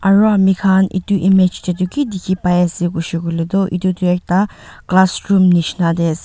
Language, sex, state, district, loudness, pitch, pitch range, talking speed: Nagamese, female, Nagaland, Dimapur, -15 LUFS, 185 Hz, 175-190 Hz, 155 wpm